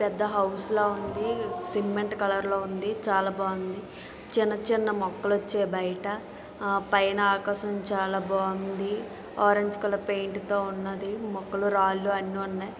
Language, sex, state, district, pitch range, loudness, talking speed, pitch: Telugu, female, Andhra Pradesh, Visakhapatnam, 195-205 Hz, -28 LUFS, 135 wpm, 200 Hz